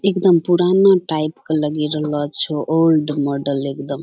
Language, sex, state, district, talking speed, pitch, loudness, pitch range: Angika, female, Bihar, Bhagalpur, 150 wpm, 155 Hz, -17 LUFS, 145-175 Hz